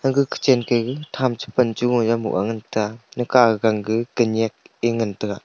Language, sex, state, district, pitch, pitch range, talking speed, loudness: Wancho, male, Arunachal Pradesh, Longding, 115 Hz, 110-125 Hz, 220 wpm, -21 LUFS